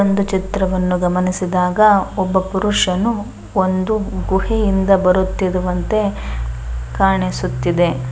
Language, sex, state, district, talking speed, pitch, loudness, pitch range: Kannada, female, Karnataka, Bellary, 75 wpm, 185 Hz, -17 LUFS, 180-200 Hz